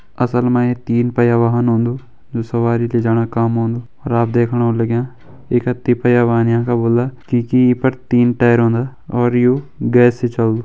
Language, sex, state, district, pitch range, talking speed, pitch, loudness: Hindi, male, Uttarakhand, Uttarkashi, 115-125 Hz, 195 wpm, 120 Hz, -16 LUFS